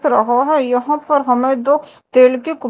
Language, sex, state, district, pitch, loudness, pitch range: Hindi, female, Madhya Pradesh, Dhar, 270 Hz, -15 LUFS, 250-300 Hz